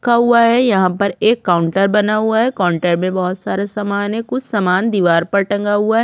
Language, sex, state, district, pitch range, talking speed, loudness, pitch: Hindi, female, Chhattisgarh, Korba, 185-225 Hz, 220 wpm, -15 LUFS, 205 Hz